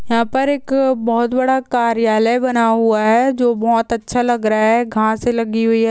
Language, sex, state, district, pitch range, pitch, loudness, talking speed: Hindi, female, Rajasthan, Churu, 225-245 Hz, 235 Hz, -16 LUFS, 195 wpm